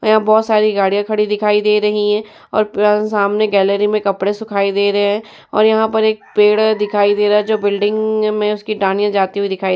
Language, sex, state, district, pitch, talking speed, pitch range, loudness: Hindi, female, Uttar Pradesh, Jyotiba Phule Nagar, 210 Hz, 245 wpm, 205-215 Hz, -15 LUFS